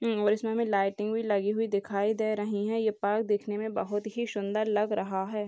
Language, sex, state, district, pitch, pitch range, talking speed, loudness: Hindi, male, Bihar, Purnia, 210 Hz, 205-220 Hz, 240 wpm, -29 LUFS